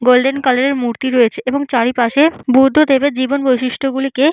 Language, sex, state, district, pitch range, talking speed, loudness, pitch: Bengali, female, West Bengal, Jalpaiguri, 250-275 Hz, 155 wpm, -14 LUFS, 265 Hz